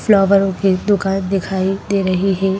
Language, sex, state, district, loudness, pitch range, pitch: Hindi, female, Madhya Pradesh, Bhopal, -16 LUFS, 190-195 Hz, 195 Hz